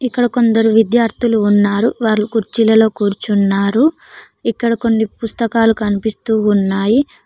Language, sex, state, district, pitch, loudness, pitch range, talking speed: Telugu, female, Telangana, Mahabubabad, 225 Hz, -14 LUFS, 210-235 Hz, 100 wpm